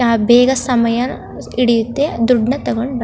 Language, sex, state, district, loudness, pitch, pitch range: Kannada, female, Karnataka, Chamarajanagar, -15 LUFS, 245 Hz, 235-255 Hz